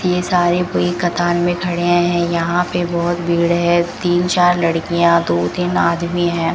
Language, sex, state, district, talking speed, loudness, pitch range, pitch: Hindi, female, Rajasthan, Bikaner, 175 wpm, -16 LUFS, 170-175 Hz, 175 Hz